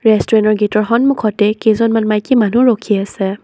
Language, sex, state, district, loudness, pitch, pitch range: Assamese, female, Assam, Sonitpur, -13 LUFS, 215 Hz, 210-230 Hz